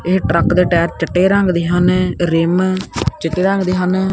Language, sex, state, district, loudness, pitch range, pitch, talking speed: Punjabi, male, Punjab, Kapurthala, -15 LUFS, 170-185 Hz, 180 Hz, 190 wpm